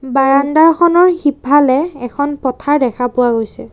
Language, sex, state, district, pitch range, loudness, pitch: Assamese, female, Assam, Sonitpur, 255-295 Hz, -13 LUFS, 280 Hz